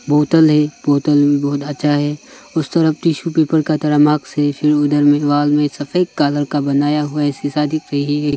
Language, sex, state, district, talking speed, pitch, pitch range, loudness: Hindi, male, Arunachal Pradesh, Longding, 210 wpm, 145 Hz, 145-150 Hz, -16 LUFS